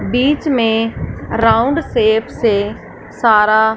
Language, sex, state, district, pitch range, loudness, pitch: Hindi, female, Punjab, Fazilka, 220-285 Hz, -14 LUFS, 225 Hz